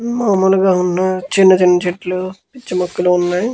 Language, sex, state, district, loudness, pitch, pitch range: Telugu, male, Andhra Pradesh, Guntur, -14 LUFS, 185 Hz, 180-190 Hz